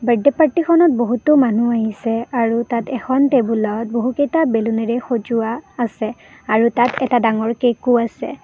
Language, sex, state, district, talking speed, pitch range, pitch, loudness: Assamese, female, Assam, Kamrup Metropolitan, 155 wpm, 225-260 Hz, 240 Hz, -17 LUFS